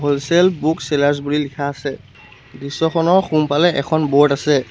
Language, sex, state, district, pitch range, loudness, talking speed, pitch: Assamese, male, Assam, Sonitpur, 145-165 Hz, -17 LUFS, 140 wpm, 150 Hz